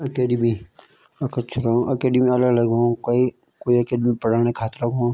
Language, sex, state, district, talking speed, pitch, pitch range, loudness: Garhwali, male, Uttarakhand, Tehri Garhwal, 165 wpm, 120 Hz, 120-125 Hz, -21 LUFS